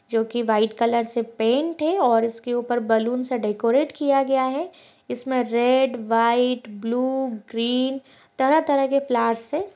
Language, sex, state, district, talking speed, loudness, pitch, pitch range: Hindi, female, Uttar Pradesh, Jalaun, 160 wpm, -22 LUFS, 245 Hz, 230-265 Hz